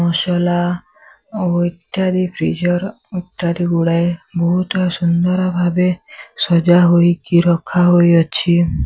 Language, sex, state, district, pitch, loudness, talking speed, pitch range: Odia, male, Odisha, Sambalpur, 175 Hz, -15 LUFS, 75 wpm, 170-180 Hz